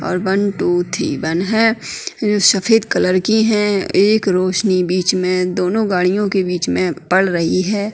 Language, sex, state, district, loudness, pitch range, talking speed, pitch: Hindi, female, Uttarakhand, Tehri Garhwal, -16 LUFS, 180-205 Hz, 175 wpm, 190 Hz